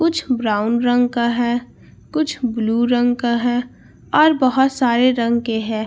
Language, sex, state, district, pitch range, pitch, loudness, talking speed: Hindi, female, Bihar, Katihar, 235-255 Hz, 245 Hz, -18 LUFS, 155 wpm